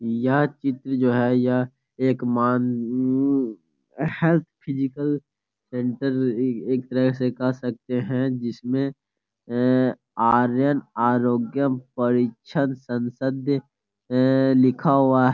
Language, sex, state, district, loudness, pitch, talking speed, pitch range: Hindi, male, Bihar, Gopalganj, -23 LUFS, 130 Hz, 100 wpm, 120-135 Hz